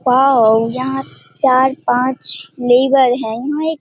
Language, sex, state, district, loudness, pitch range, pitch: Hindi, female, Bihar, Purnia, -14 LUFS, 245-270 Hz, 260 Hz